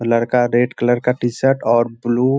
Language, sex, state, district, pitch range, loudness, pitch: Hindi, male, Bihar, Sitamarhi, 120-125 Hz, -17 LUFS, 120 Hz